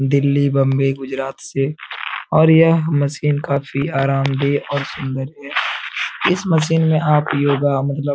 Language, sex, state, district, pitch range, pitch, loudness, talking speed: Hindi, male, Bihar, Jamui, 135-150 Hz, 140 Hz, -18 LUFS, 145 wpm